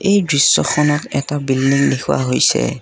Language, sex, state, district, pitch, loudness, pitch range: Assamese, male, Assam, Kamrup Metropolitan, 140 Hz, -15 LUFS, 135-150 Hz